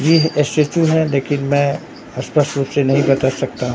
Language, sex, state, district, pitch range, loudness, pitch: Hindi, male, Bihar, Katihar, 135-150 Hz, -16 LUFS, 140 Hz